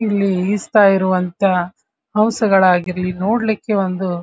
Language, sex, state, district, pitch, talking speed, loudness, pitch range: Kannada, female, Karnataka, Dharwad, 195 Hz, 100 wpm, -16 LUFS, 180-210 Hz